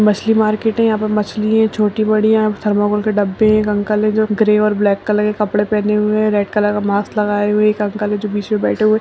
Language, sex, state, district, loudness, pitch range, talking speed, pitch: Kumaoni, male, Uttarakhand, Uttarkashi, -15 LUFS, 210-215 Hz, 260 wpm, 210 Hz